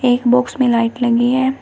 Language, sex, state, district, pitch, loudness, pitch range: Hindi, female, Uttar Pradesh, Shamli, 245 Hz, -15 LUFS, 240-255 Hz